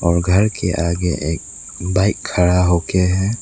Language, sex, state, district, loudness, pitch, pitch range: Hindi, male, Arunachal Pradesh, Lower Dibang Valley, -18 LUFS, 90 Hz, 85-95 Hz